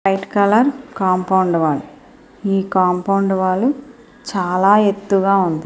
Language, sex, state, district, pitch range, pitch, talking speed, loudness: Telugu, female, Andhra Pradesh, Srikakulam, 185-205 Hz, 195 Hz, 105 wpm, -17 LUFS